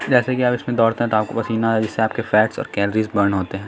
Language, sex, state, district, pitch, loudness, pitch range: Hindi, male, Uttar Pradesh, Budaun, 110 Hz, -19 LUFS, 105-120 Hz